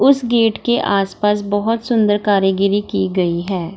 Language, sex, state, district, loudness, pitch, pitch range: Hindi, female, Bihar, Gaya, -16 LUFS, 205 Hz, 195-225 Hz